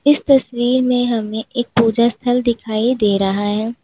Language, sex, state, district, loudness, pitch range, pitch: Hindi, female, Uttar Pradesh, Lalitpur, -17 LUFS, 220-245 Hz, 235 Hz